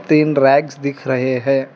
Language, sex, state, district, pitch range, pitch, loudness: Hindi, male, Telangana, Hyderabad, 135-145 Hz, 135 Hz, -16 LUFS